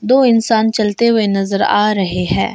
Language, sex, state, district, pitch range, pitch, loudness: Hindi, female, Arunachal Pradesh, Longding, 195-230 Hz, 215 Hz, -14 LUFS